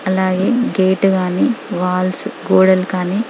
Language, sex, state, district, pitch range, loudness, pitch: Telugu, female, Telangana, Karimnagar, 185-200 Hz, -16 LUFS, 190 Hz